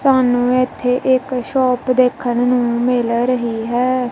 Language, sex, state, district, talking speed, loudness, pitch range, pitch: Punjabi, female, Punjab, Kapurthala, 130 wpm, -16 LUFS, 245-255 Hz, 250 Hz